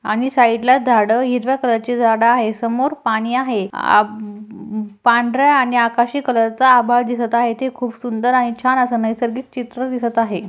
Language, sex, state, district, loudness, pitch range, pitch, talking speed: Marathi, female, Maharashtra, Aurangabad, -16 LUFS, 225-250 Hz, 240 Hz, 170 wpm